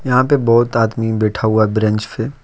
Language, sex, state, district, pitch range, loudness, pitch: Hindi, male, Jharkhand, Ranchi, 110-125 Hz, -15 LUFS, 115 Hz